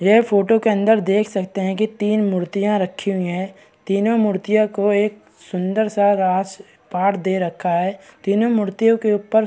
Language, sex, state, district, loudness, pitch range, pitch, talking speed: Hindi, female, Bihar, East Champaran, -19 LUFS, 190-215 Hz, 200 Hz, 175 wpm